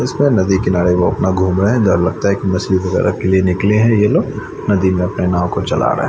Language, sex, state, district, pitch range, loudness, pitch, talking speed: Hindi, male, Chandigarh, Chandigarh, 90-100 Hz, -15 LUFS, 95 Hz, 285 wpm